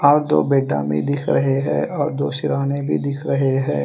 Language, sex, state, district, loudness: Hindi, female, Telangana, Hyderabad, -19 LUFS